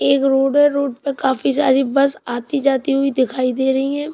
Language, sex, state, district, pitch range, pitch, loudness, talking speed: Hindi, female, Punjab, Kapurthala, 265-280 Hz, 275 Hz, -17 LUFS, 215 wpm